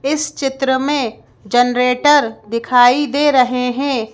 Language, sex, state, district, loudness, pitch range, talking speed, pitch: Hindi, female, Madhya Pradesh, Bhopal, -15 LUFS, 245-280 Hz, 115 wpm, 255 Hz